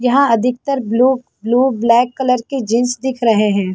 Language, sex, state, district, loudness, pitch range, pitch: Hindi, female, Chhattisgarh, Sarguja, -15 LUFS, 230-260 Hz, 250 Hz